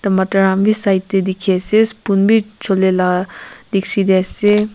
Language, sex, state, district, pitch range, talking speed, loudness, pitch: Nagamese, female, Nagaland, Kohima, 190-210 Hz, 175 wpm, -14 LUFS, 195 Hz